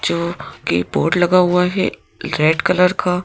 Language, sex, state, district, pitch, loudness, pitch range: Hindi, female, Madhya Pradesh, Bhopal, 175 Hz, -17 LUFS, 160-180 Hz